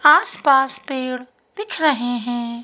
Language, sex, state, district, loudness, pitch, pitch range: Hindi, female, Madhya Pradesh, Bhopal, -19 LUFS, 260 Hz, 245-295 Hz